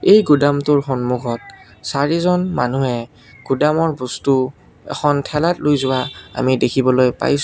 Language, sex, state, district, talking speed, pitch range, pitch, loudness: Assamese, male, Assam, Kamrup Metropolitan, 115 wpm, 125-150 Hz, 135 Hz, -17 LUFS